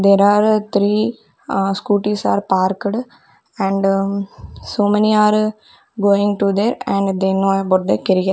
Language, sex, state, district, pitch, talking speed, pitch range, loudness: English, female, Chandigarh, Chandigarh, 200 Hz, 135 wpm, 195-210 Hz, -17 LUFS